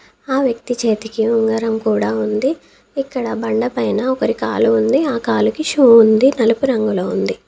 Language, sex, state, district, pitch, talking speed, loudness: Telugu, female, Telangana, Komaram Bheem, 225 Hz, 145 wpm, -16 LUFS